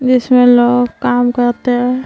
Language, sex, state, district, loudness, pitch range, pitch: Hindi, female, Uttar Pradesh, Varanasi, -12 LUFS, 245-250 Hz, 245 Hz